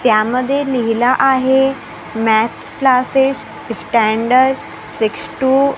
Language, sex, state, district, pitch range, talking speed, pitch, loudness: Marathi, female, Maharashtra, Gondia, 225-270 Hz, 95 wpm, 255 Hz, -15 LUFS